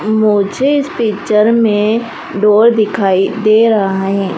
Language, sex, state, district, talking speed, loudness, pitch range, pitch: Hindi, female, Madhya Pradesh, Dhar, 125 wpm, -12 LUFS, 200-225 Hz, 215 Hz